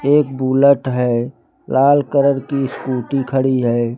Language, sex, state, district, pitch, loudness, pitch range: Hindi, male, Uttar Pradesh, Lucknow, 135 Hz, -16 LUFS, 125-140 Hz